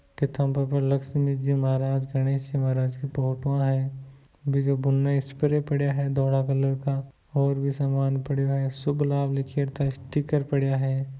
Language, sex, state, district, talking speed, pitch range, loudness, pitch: Hindi, male, Rajasthan, Nagaur, 155 wpm, 135-140 Hz, -26 LUFS, 135 Hz